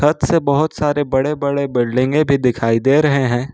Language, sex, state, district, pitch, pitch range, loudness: Hindi, male, Jharkhand, Ranchi, 140 Hz, 130-145 Hz, -16 LUFS